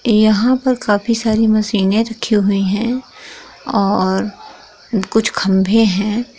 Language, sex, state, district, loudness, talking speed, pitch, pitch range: Hindi, female, Jharkhand, Sahebganj, -15 LUFS, 115 wpm, 215 Hz, 200-225 Hz